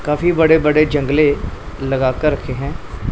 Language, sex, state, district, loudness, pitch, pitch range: Hindi, male, Punjab, Pathankot, -16 LUFS, 150 Hz, 135-155 Hz